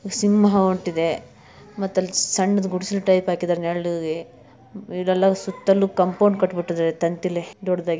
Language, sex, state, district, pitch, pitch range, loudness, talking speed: Kannada, male, Karnataka, Bijapur, 185 Hz, 170-195 Hz, -21 LUFS, 105 wpm